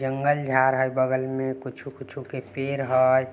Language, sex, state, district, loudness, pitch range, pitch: Maithili, male, Bihar, Samastipur, -24 LUFS, 130-135 Hz, 130 Hz